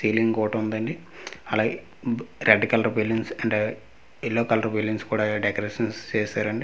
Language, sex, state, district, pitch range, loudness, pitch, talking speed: Telugu, male, Andhra Pradesh, Manyam, 105-115 Hz, -25 LUFS, 110 Hz, 125 wpm